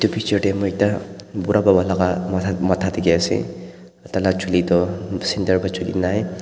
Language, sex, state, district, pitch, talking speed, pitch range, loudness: Nagamese, male, Nagaland, Dimapur, 95 Hz, 170 wpm, 90-100 Hz, -20 LUFS